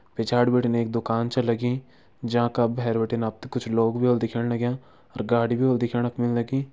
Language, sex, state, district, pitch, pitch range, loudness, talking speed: Garhwali, male, Uttarakhand, Uttarkashi, 120 Hz, 115-125 Hz, -24 LUFS, 195 wpm